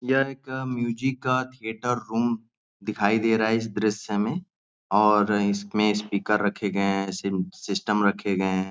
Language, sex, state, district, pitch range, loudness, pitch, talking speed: Hindi, male, Uttar Pradesh, Ghazipur, 100-125 Hz, -25 LUFS, 105 Hz, 160 wpm